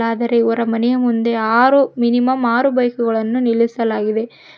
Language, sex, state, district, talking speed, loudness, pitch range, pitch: Kannada, female, Karnataka, Koppal, 120 wpm, -16 LUFS, 230-245 Hz, 235 Hz